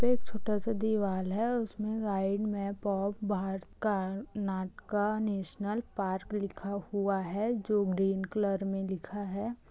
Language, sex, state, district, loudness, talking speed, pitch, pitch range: Hindi, female, Chhattisgarh, Raigarh, -33 LUFS, 150 wpm, 200 Hz, 195-215 Hz